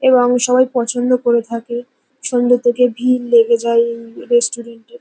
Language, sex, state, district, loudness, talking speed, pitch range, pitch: Bengali, female, West Bengal, North 24 Parganas, -15 LUFS, 155 wpm, 235-250 Hz, 240 Hz